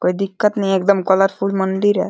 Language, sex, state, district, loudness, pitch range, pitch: Hindi, male, Uttar Pradesh, Deoria, -17 LUFS, 190-200 Hz, 195 Hz